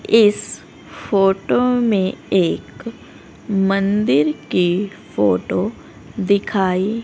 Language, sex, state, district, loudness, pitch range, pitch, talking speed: Hindi, female, Haryana, Rohtak, -18 LUFS, 185-210 Hz, 195 Hz, 70 wpm